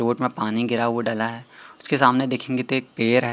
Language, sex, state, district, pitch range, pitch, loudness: Hindi, male, Madhya Pradesh, Katni, 115-125 Hz, 120 Hz, -22 LUFS